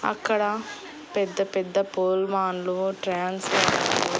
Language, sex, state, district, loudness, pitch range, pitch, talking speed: Telugu, female, Andhra Pradesh, Annamaya, -25 LUFS, 185-205 Hz, 195 Hz, 100 wpm